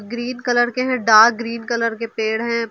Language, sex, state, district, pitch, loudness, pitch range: Hindi, female, Uttar Pradesh, Lucknow, 230 Hz, -18 LUFS, 225-240 Hz